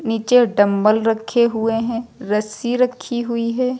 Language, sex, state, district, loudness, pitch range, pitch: Hindi, female, Uttar Pradesh, Lucknow, -18 LUFS, 220-240 Hz, 230 Hz